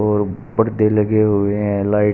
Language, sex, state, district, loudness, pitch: Hindi, male, Haryana, Rohtak, -17 LUFS, 105 Hz